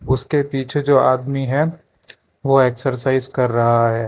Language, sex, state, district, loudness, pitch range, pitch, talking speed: Hindi, male, Karnataka, Bangalore, -18 LUFS, 125-140 Hz, 130 Hz, 145 wpm